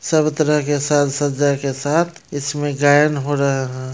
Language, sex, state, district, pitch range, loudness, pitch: Hindi, male, Bihar, Muzaffarpur, 140-150 Hz, -18 LUFS, 145 Hz